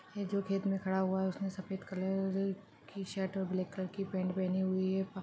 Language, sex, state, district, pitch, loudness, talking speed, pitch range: Hindi, female, Chhattisgarh, Balrampur, 190 Hz, -36 LUFS, 240 wpm, 190-195 Hz